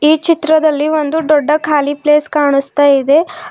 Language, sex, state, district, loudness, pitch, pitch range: Kannada, female, Karnataka, Bidar, -12 LUFS, 300 Hz, 290-310 Hz